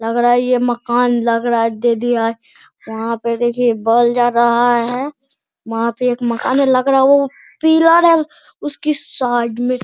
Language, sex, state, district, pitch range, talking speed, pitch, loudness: Hindi, male, Bihar, Araria, 235-270 Hz, 195 wpm, 245 Hz, -15 LUFS